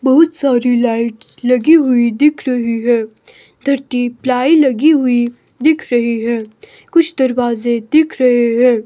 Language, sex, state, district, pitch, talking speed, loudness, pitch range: Hindi, male, Himachal Pradesh, Shimla, 250 Hz, 130 wpm, -14 LUFS, 240-295 Hz